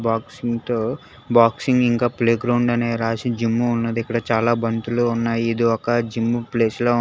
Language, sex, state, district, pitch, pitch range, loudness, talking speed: Telugu, male, Telangana, Hyderabad, 115 Hz, 115-120 Hz, -20 LUFS, 165 wpm